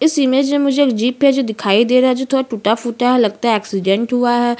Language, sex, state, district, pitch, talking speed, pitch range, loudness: Hindi, female, Chhattisgarh, Bastar, 245 Hz, 285 wpm, 225-270 Hz, -15 LUFS